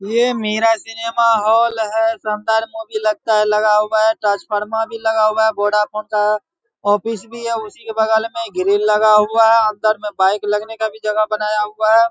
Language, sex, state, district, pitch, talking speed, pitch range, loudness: Hindi, male, Bihar, Saharsa, 220 Hz, 195 wpm, 210-225 Hz, -17 LUFS